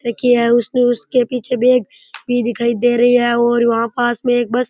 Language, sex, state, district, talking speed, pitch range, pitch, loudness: Rajasthani, male, Rajasthan, Churu, 230 wpm, 235-245 Hz, 240 Hz, -15 LUFS